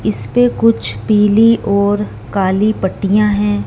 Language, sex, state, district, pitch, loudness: Hindi, male, Punjab, Fazilka, 200 Hz, -14 LUFS